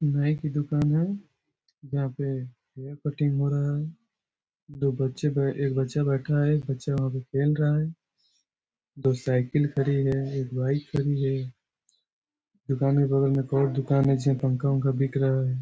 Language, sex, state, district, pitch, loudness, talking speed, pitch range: Hindi, male, Bihar, Saran, 140 Hz, -26 LUFS, 185 wpm, 135-150 Hz